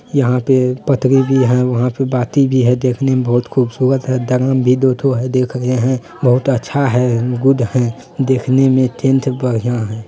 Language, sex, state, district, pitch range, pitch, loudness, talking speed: Hindi, male, Bihar, Bhagalpur, 125-135 Hz, 130 Hz, -15 LUFS, 195 wpm